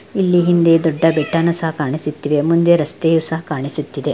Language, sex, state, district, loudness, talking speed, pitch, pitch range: Kannada, female, Karnataka, Dakshina Kannada, -16 LUFS, 160 wpm, 160 Hz, 150-170 Hz